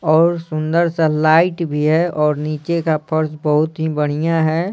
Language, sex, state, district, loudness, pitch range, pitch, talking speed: Hindi, male, Bihar, Patna, -17 LUFS, 155-165 Hz, 155 Hz, 180 wpm